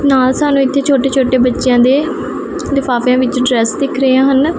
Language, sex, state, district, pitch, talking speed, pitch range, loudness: Punjabi, female, Punjab, Pathankot, 265 Hz, 170 wpm, 250-275 Hz, -13 LUFS